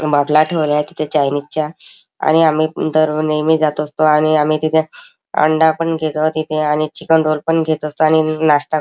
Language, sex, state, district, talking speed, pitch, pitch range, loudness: Marathi, male, Maharashtra, Chandrapur, 190 wpm, 155 Hz, 150-160 Hz, -15 LUFS